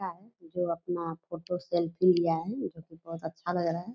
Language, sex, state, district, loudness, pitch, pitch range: Hindi, female, Bihar, Purnia, -31 LUFS, 170 Hz, 165-180 Hz